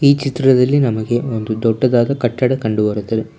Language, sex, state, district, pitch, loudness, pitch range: Kannada, male, Karnataka, Bangalore, 120 Hz, -16 LUFS, 110-135 Hz